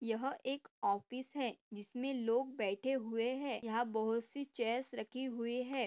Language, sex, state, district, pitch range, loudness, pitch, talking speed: Hindi, female, Maharashtra, Dhule, 230-260 Hz, -39 LUFS, 245 Hz, 165 wpm